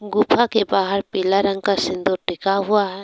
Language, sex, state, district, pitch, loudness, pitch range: Hindi, female, Jharkhand, Palamu, 195 Hz, -19 LUFS, 190-205 Hz